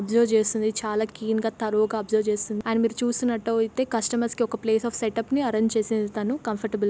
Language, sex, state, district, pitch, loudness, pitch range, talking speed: Telugu, female, Telangana, Nalgonda, 220 Hz, -25 LUFS, 215-230 Hz, 210 wpm